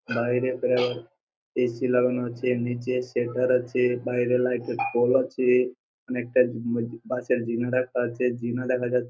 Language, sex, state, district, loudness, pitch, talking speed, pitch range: Bengali, male, West Bengal, Jhargram, -25 LUFS, 125 Hz, 130 wpm, 120-125 Hz